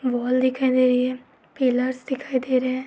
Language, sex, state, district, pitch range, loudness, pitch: Hindi, female, Uttar Pradesh, Gorakhpur, 255-260 Hz, -22 LUFS, 255 Hz